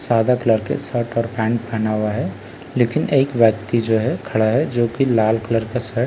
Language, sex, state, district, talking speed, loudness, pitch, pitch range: Hindi, male, Bihar, Katihar, 235 wpm, -19 LUFS, 115 Hz, 110-125 Hz